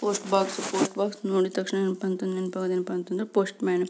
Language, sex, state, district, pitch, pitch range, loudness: Kannada, female, Karnataka, Belgaum, 190 Hz, 185-195 Hz, -27 LUFS